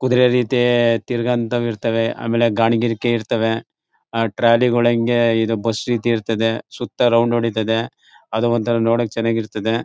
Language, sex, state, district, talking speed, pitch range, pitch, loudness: Kannada, male, Karnataka, Mysore, 135 wpm, 115-120 Hz, 115 Hz, -18 LUFS